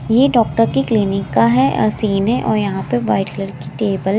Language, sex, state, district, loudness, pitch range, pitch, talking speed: Hindi, female, Himachal Pradesh, Shimla, -16 LUFS, 140-215 Hz, 195 Hz, 230 wpm